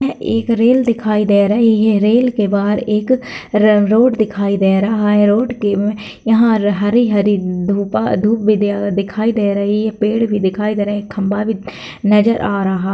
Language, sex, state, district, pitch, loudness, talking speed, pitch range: Hindi, female, Bihar, Jahanabad, 210 Hz, -15 LUFS, 180 wpm, 200-225 Hz